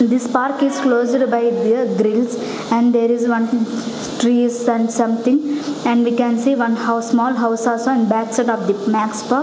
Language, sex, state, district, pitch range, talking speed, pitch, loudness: English, female, Punjab, Fazilka, 230-245 Hz, 190 wpm, 235 Hz, -17 LUFS